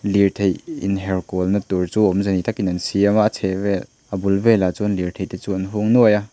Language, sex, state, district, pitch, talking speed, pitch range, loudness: Mizo, male, Mizoram, Aizawl, 100 Hz, 255 wpm, 95-105 Hz, -20 LUFS